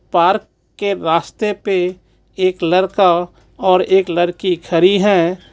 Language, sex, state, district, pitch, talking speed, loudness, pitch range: Hindi, male, Jharkhand, Ranchi, 180 Hz, 120 wpm, -16 LUFS, 175-190 Hz